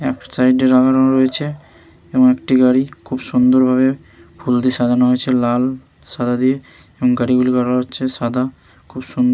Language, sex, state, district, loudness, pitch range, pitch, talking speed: Bengali, male, West Bengal, Malda, -16 LUFS, 125-130 Hz, 130 Hz, 160 wpm